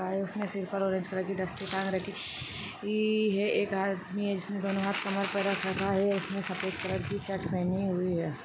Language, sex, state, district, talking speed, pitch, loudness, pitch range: Hindi, female, Chhattisgarh, Balrampur, 215 wpm, 195 Hz, -31 LUFS, 190-200 Hz